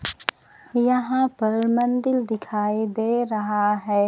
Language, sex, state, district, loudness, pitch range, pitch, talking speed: Hindi, female, Bihar, Kaimur, -23 LUFS, 210-245 Hz, 225 Hz, 105 wpm